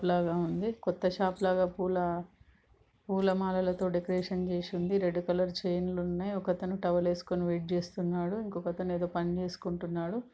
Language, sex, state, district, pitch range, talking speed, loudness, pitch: Telugu, female, Telangana, Nalgonda, 175-185 Hz, 145 wpm, -32 LUFS, 180 Hz